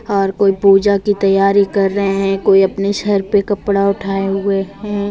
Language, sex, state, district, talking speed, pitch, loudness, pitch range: Hindi, female, Jharkhand, Deoghar, 190 wpm, 200 Hz, -14 LUFS, 195-200 Hz